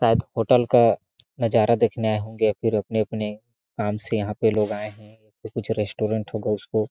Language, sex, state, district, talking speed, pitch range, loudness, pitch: Hindi, male, Chhattisgarh, Sarguja, 210 wpm, 105-115 Hz, -23 LUFS, 110 Hz